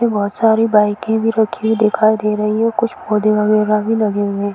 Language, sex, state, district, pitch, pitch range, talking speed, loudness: Hindi, female, Uttar Pradesh, Varanasi, 215 Hz, 210-220 Hz, 250 wpm, -15 LUFS